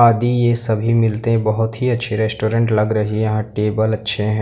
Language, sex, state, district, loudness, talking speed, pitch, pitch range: Hindi, male, Madhya Pradesh, Umaria, -18 LUFS, 215 wpm, 110 Hz, 110-115 Hz